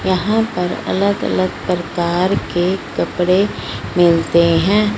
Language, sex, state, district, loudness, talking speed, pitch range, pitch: Hindi, male, Punjab, Fazilka, -17 LUFS, 110 wpm, 170-195 Hz, 180 Hz